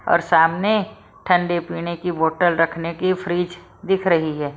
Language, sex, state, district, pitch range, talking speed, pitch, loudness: Hindi, female, Maharashtra, Mumbai Suburban, 165-180 Hz, 155 wpm, 175 Hz, -20 LUFS